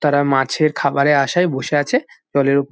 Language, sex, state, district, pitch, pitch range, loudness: Bengali, male, West Bengal, Jalpaiguri, 140 Hz, 140-150 Hz, -17 LUFS